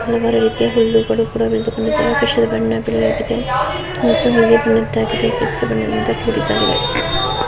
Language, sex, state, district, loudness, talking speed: Kannada, female, Karnataka, Mysore, -16 LUFS, 65 wpm